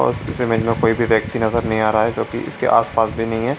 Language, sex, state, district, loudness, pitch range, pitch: Hindi, male, Bihar, Supaul, -18 LUFS, 110-115 Hz, 115 Hz